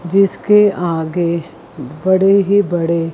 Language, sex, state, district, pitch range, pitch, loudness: Hindi, female, Chandigarh, Chandigarh, 165-195 Hz, 175 Hz, -14 LUFS